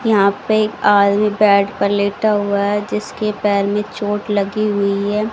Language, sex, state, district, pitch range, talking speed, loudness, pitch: Hindi, female, Haryana, Rohtak, 200-210 Hz, 180 wpm, -16 LUFS, 205 Hz